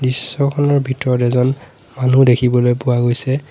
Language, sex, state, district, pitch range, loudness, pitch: Assamese, male, Assam, Sonitpur, 125-135 Hz, -15 LUFS, 130 Hz